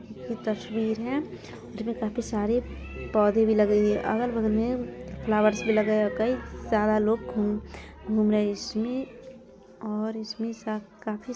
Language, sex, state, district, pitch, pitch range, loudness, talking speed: Hindi, female, Bihar, Araria, 220 Hz, 215-230 Hz, -27 LUFS, 160 wpm